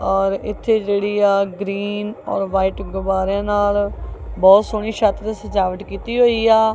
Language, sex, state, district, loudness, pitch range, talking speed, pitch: Punjabi, female, Punjab, Kapurthala, -18 LUFS, 195-215 Hz, 150 wpm, 205 Hz